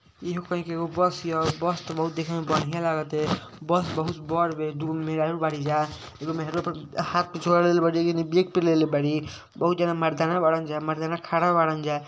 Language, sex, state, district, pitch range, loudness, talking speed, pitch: Hindi, male, Uttar Pradesh, Ghazipur, 155-170 Hz, -25 LUFS, 220 wpm, 165 Hz